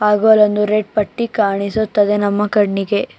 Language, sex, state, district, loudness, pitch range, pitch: Kannada, female, Karnataka, Bangalore, -15 LUFS, 205-215 Hz, 210 Hz